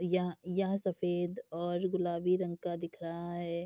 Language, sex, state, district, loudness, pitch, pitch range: Hindi, female, Uttar Pradesh, Etah, -35 LUFS, 175 Hz, 170-185 Hz